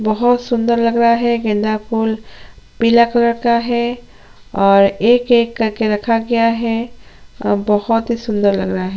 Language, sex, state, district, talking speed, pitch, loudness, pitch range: Hindi, female, Chhattisgarh, Sukma, 175 wpm, 230 Hz, -15 LUFS, 215-235 Hz